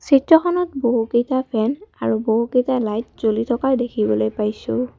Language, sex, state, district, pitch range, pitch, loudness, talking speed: Assamese, female, Assam, Kamrup Metropolitan, 220-265 Hz, 240 Hz, -19 LUFS, 120 wpm